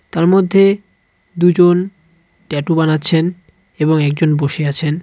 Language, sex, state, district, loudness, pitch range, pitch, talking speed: Bengali, male, West Bengal, Cooch Behar, -14 LUFS, 155-180 Hz, 170 Hz, 105 wpm